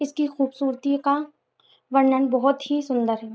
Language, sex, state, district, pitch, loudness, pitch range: Hindi, female, Jharkhand, Jamtara, 275 Hz, -23 LUFS, 260-285 Hz